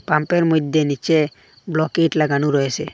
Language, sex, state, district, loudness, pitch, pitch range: Bengali, male, Assam, Hailakandi, -19 LUFS, 155 Hz, 145-160 Hz